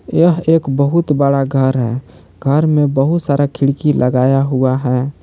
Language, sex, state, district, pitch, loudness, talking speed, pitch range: Hindi, male, Jharkhand, Palamu, 140 Hz, -14 LUFS, 160 wpm, 130-150 Hz